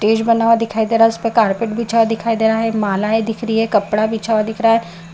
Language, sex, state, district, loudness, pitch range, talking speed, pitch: Hindi, female, Bihar, Madhepura, -16 LUFS, 220-230 Hz, 325 wpm, 225 Hz